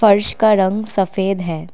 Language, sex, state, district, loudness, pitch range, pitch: Hindi, female, Assam, Kamrup Metropolitan, -17 LUFS, 190-210 Hz, 195 Hz